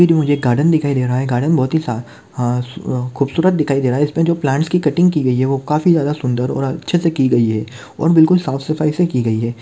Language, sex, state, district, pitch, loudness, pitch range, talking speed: Hindi, male, Maharashtra, Chandrapur, 140 Hz, -16 LUFS, 125-160 Hz, 260 wpm